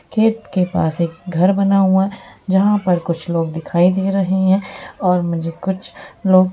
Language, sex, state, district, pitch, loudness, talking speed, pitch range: Hindi, female, Jharkhand, Sahebganj, 185 Hz, -17 LUFS, 185 wpm, 170-195 Hz